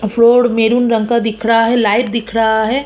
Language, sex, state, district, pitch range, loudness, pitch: Hindi, female, Chhattisgarh, Kabirdham, 225-235 Hz, -13 LUFS, 230 Hz